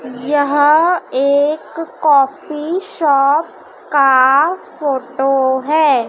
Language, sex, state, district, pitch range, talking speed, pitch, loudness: Hindi, male, Madhya Pradesh, Dhar, 270-315 Hz, 70 wpm, 290 Hz, -14 LUFS